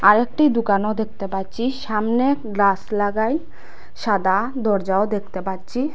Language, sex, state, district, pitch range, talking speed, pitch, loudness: Bengali, female, Assam, Hailakandi, 195-245 Hz, 110 wpm, 210 Hz, -21 LUFS